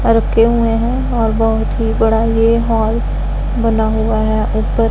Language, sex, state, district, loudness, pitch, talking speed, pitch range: Hindi, female, Punjab, Pathankot, -15 LUFS, 225 Hz, 160 wpm, 220-230 Hz